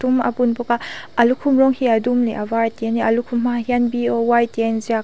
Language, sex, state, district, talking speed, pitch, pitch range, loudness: Mizo, female, Mizoram, Aizawl, 275 wpm, 235 Hz, 230-245 Hz, -18 LUFS